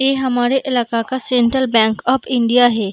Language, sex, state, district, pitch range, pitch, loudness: Hindi, female, Chhattisgarh, Balrampur, 230-260 Hz, 245 Hz, -16 LUFS